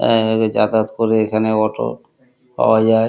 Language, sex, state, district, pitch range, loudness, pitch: Bengali, male, West Bengal, Kolkata, 110-115 Hz, -16 LUFS, 110 Hz